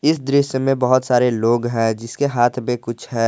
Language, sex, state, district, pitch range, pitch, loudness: Hindi, male, Jharkhand, Garhwa, 115-135 Hz, 125 Hz, -18 LUFS